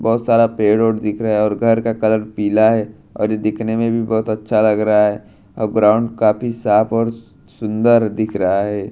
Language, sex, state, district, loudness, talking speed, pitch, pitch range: Hindi, male, Bihar, Katihar, -16 LUFS, 210 wpm, 110 Hz, 105-115 Hz